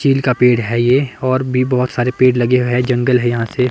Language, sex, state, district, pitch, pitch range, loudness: Hindi, male, Himachal Pradesh, Shimla, 125 Hz, 120-130 Hz, -15 LUFS